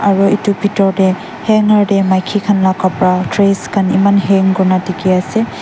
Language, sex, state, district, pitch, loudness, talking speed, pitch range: Nagamese, female, Nagaland, Dimapur, 195 Hz, -13 LUFS, 190 wpm, 190-205 Hz